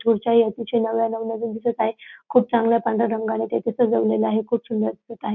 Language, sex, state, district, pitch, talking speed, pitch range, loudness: Marathi, female, Maharashtra, Dhule, 230 Hz, 200 wpm, 220-230 Hz, -22 LUFS